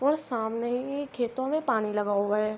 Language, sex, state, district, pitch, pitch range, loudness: Urdu, female, Andhra Pradesh, Anantapur, 240 Hz, 215-275 Hz, -29 LUFS